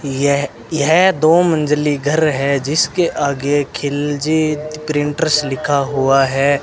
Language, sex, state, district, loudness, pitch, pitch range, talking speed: Hindi, male, Rajasthan, Bikaner, -16 LUFS, 145 Hz, 140-155 Hz, 120 wpm